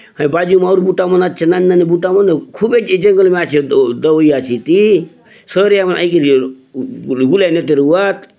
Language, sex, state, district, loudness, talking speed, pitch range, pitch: Halbi, male, Chhattisgarh, Bastar, -12 LUFS, 185 wpm, 150-195 Hz, 180 Hz